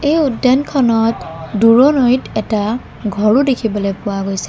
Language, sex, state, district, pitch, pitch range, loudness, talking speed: Assamese, female, Assam, Kamrup Metropolitan, 225 Hz, 205-260 Hz, -14 LUFS, 105 wpm